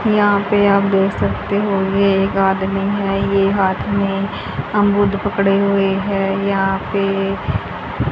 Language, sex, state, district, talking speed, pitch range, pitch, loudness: Hindi, female, Haryana, Charkhi Dadri, 140 wpm, 195-200 Hz, 195 Hz, -17 LUFS